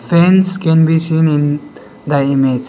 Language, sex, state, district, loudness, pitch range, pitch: English, male, Arunachal Pradesh, Lower Dibang Valley, -13 LUFS, 145-170 Hz, 160 Hz